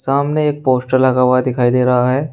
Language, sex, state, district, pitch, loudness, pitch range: Hindi, male, Uttar Pradesh, Shamli, 130 Hz, -14 LUFS, 125-140 Hz